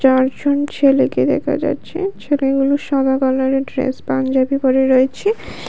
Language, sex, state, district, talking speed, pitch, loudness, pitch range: Bengali, female, Tripura, West Tripura, 115 wpm, 270 Hz, -17 LUFS, 265-285 Hz